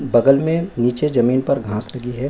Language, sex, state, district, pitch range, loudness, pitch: Hindi, male, Chhattisgarh, Kabirdham, 120-140 Hz, -18 LUFS, 130 Hz